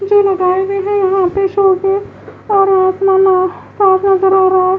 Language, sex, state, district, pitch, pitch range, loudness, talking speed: Hindi, female, Bihar, West Champaran, 385 Hz, 375-390 Hz, -12 LUFS, 125 wpm